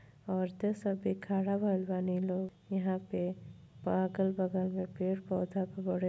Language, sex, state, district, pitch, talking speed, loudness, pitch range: Bhojpuri, female, Uttar Pradesh, Gorakhpur, 185 Hz, 160 wpm, -35 LUFS, 185-190 Hz